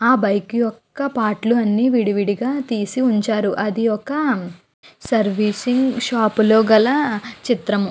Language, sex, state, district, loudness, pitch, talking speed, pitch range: Telugu, female, Andhra Pradesh, Guntur, -18 LUFS, 220 Hz, 130 wpm, 210-245 Hz